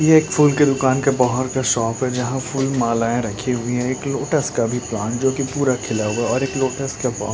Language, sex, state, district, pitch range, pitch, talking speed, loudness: Hindi, male, Uttar Pradesh, Etah, 120-135 Hz, 130 Hz, 255 wpm, -19 LUFS